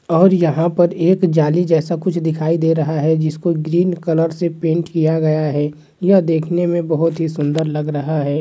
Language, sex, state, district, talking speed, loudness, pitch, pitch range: Hindi, male, Uttar Pradesh, Varanasi, 200 wpm, -17 LUFS, 165 Hz, 155-170 Hz